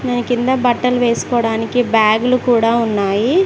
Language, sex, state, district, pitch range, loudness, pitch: Telugu, female, Telangana, Mahabubabad, 225-250 Hz, -15 LUFS, 240 Hz